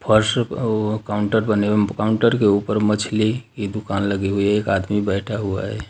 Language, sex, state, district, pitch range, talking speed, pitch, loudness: Hindi, male, Bihar, Darbhanga, 100-110 Hz, 185 wpm, 105 Hz, -20 LUFS